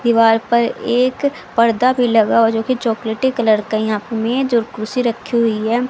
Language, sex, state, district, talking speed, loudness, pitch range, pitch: Hindi, female, Haryana, Rohtak, 215 wpm, -16 LUFS, 225-245 Hz, 230 Hz